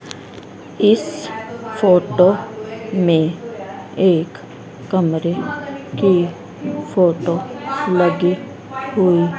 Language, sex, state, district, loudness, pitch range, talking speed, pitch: Hindi, female, Haryana, Rohtak, -18 LUFS, 175-225 Hz, 60 wpm, 190 Hz